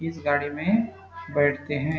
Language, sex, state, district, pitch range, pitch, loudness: Hindi, male, Chhattisgarh, Bastar, 145-165 Hz, 150 Hz, -25 LUFS